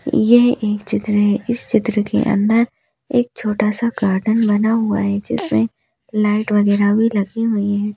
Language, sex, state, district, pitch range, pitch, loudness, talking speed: Hindi, female, Madhya Pradesh, Bhopal, 205-230 Hz, 210 Hz, -17 LUFS, 165 wpm